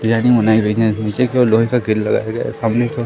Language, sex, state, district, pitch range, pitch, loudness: Hindi, male, Madhya Pradesh, Katni, 110-120 Hz, 115 Hz, -16 LUFS